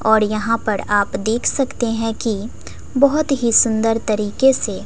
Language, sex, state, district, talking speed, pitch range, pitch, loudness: Hindi, female, Bihar, West Champaran, 160 wpm, 215-250 Hz, 225 Hz, -18 LUFS